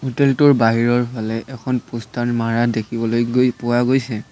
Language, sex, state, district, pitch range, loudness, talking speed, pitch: Assamese, male, Assam, Sonitpur, 115-125 Hz, -18 LUFS, 155 wpm, 120 Hz